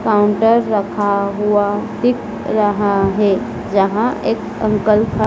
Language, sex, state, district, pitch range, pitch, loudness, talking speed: Hindi, female, Madhya Pradesh, Dhar, 200-215 Hz, 210 Hz, -16 LUFS, 115 wpm